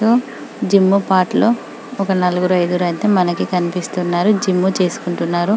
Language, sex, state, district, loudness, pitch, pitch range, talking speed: Telugu, female, Telangana, Karimnagar, -16 LUFS, 185 Hz, 175-200 Hz, 120 wpm